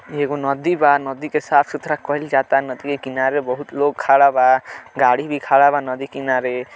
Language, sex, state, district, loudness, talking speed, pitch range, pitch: Bhojpuri, male, Uttar Pradesh, Deoria, -18 LUFS, 205 wpm, 130-145 Hz, 140 Hz